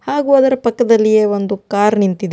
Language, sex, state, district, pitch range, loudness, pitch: Kannada, female, Karnataka, Bidar, 200-245 Hz, -14 LUFS, 215 Hz